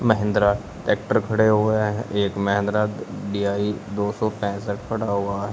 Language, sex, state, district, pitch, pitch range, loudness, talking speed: Hindi, male, Uttar Pradesh, Shamli, 105 Hz, 100-105 Hz, -23 LUFS, 150 wpm